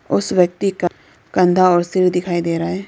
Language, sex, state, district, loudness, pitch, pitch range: Hindi, female, Arunachal Pradesh, Lower Dibang Valley, -17 LUFS, 180 Hz, 175-185 Hz